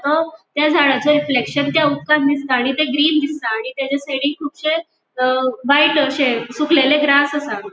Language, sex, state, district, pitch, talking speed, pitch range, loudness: Konkani, female, Goa, North and South Goa, 285 Hz, 155 wpm, 270-300 Hz, -17 LUFS